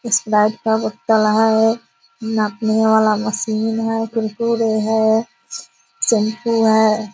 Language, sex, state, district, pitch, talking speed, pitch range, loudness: Hindi, female, Bihar, Purnia, 220 Hz, 110 wpm, 215-225 Hz, -17 LUFS